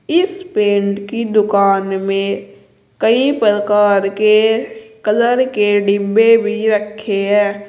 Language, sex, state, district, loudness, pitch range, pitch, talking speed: Hindi, female, Uttar Pradesh, Saharanpur, -14 LUFS, 200-225 Hz, 210 Hz, 110 wpm